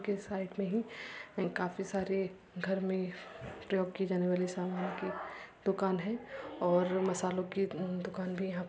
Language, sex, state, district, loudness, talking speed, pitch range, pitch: Hindi, female, Uttar Pradesh, Muzaffarnagar, -36 LUFS, 165 wpm, 185-195 Hz, 190 Hz